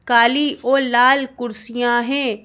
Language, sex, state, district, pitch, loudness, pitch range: Hindi, female, Madhya Pradesh, Bhopal, 245 Hz, -17 LUFS, 240-270 Hz